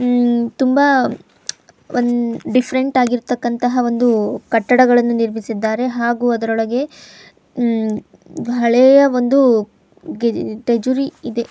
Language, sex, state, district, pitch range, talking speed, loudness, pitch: Kannada, female, Karnataka, Chamarajanagar, 235-255 Hz, 75 wpm, -16 LUFS, 245 Hz